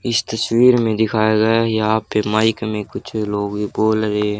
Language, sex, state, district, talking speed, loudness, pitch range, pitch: Hindi, male, Haryana, Charkhi Dadri, 205 wpm, -18 LUFS, 105-115 Hz, 110 Hz